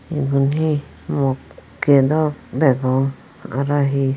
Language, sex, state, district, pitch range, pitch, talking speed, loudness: Chakma, female, Tripura, Unakoti, 135-145 Hz, 140 Hz, 100 wpm, -19 LUFS